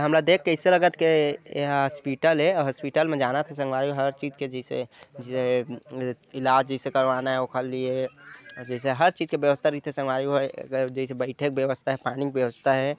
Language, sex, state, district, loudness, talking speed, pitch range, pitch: Chhattisgarhi, male, Chhattisgarh, Bilaspur, -25 LUFS, 165 wpm, 130-145 Hz, 135 Hz